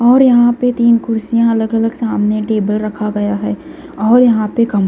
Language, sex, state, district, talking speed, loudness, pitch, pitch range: Hindi, female, Maharashtra, Gondia, 195 wpm, -13 LUFS, 225 Hz, 210-240 Hz